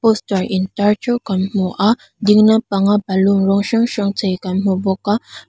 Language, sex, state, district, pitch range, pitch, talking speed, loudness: Mizo, female, Mizoram, Aizawl, 190-215 Hz, 200 Hz, 185 wpm, -16 LUFS